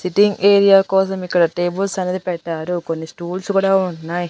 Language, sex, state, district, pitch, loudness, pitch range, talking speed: Telugu, female, Andhra Pradesh, Annamaya, 185 Hz, -17 LUFS, 175-195 Hz, 155 wpm